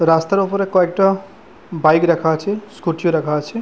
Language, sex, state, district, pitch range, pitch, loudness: Bengali, male, West Bengal, Purulia, 160-195 Hz, 170 Hz, -17 LUFS